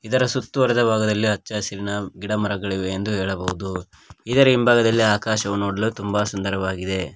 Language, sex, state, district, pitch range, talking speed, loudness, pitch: Kannada, male, Karnataka, Koppal, 95-110 Hz, 125 wpm, -21 LUFS, 105 Hz